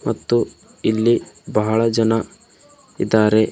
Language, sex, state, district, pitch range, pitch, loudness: Kannada, male, Karnataka, Bidar, 110-115 Hz, 110 Hz, -19 LUFS